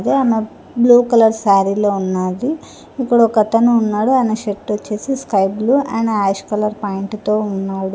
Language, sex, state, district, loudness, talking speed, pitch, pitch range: Telugu, female, Telangana, Hyderabad, -16 LUFS, 150 wpm, 215 Hz, 200-240 Hz